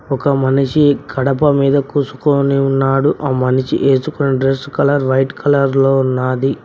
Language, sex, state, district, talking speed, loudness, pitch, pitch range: Telugu, male, Telangana, Mahabubabad, 125 wpm, -14 LUFS, 135 Hz, 135-140 Hz